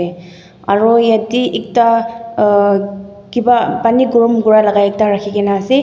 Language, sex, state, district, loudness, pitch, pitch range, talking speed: Nagamese, female, Nagaland, Dimapur, -13 LUFS, 215 Hz, 200-230 Hz, 125 wpm